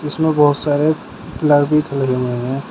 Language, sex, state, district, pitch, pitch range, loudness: Hindi, male, Uttar Pradesh, Shamli, 145 Hz, 135-150 Hz, -17 LUFS